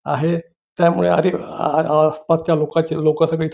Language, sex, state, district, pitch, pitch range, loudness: Marathi, male, Maharashtra, Nagpur, 160 Hz, 155-165 Hz, -18 LUFS